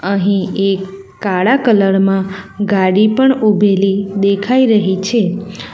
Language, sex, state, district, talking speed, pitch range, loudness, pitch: Gujarati, female, Gujarat, Valsad, 115 wpm, 195-210 Hz, -13 LUFS, 200 Hz